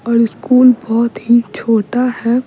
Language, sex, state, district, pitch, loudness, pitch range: Hindi, female, Bihar, Patna, 235 Hz, -13 LUFS, 230-250 Hz